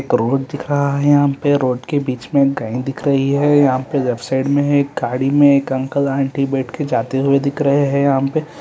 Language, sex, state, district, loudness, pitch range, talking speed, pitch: Hindi, male, Chhattisgarh, Rajnandgaon, -16 LUFS, 135-145 Hz, 260 wpm, 140 Hz